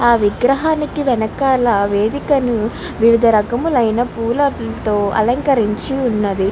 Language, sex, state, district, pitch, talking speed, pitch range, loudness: Telugu, female, Andhra Pradesh, Krishna, 235 Hz, 75 wpm, 215-270 Hz, -16 LUFS